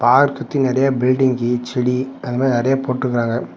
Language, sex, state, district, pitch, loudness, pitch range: Tamil, male, Tamil Nadu, Namakkal, 130 Hz, -18 LUFS, 125-135 Hz